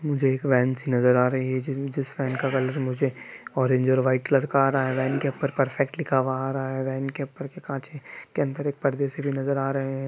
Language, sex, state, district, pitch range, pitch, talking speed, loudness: Hindi, male, Bihar, Sitamarhi, 130-140 Hz, 135 Hz, 270 wpm, -25 LUFS